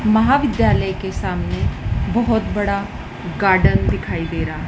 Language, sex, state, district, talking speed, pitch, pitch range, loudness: Hindi, female, Madhya Pradesh, Dhar, 130 wpm, 220 Hz, 205-235 Hz, -19 LUFS